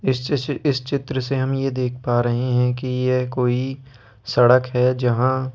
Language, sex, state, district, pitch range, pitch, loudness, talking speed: Hindi, male, Madhya Pradesh, Bhopal, 125-135 Hz, 130 Hz, -20 LUFS, 195 wpm